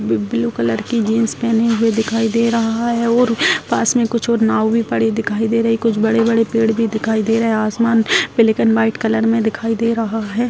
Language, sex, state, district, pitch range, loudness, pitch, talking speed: Hindi, female, Bihar, Sitamarhi, 220-230 Hz, -16 LUFS, 225 Hz, 230 wpm